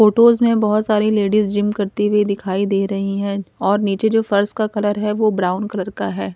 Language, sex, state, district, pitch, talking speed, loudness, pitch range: Hindi, female, Punjab, Kapurthala, 205 Hz, 225 wpm, -18 LUFS, 195-215 Hz